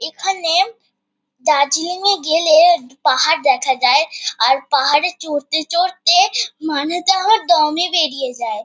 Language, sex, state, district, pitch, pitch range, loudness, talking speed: Bengali, female, West Bengal, Kolkata, 325 Hz, 290-370 Hz, -15 LUFS, 125 wpm